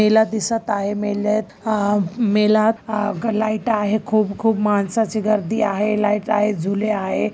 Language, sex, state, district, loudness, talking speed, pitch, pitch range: Marathi, female, Maharashtra, Chandrapur, -19 LUFS, 140 wpm, 215 Hz, 205-220 Hz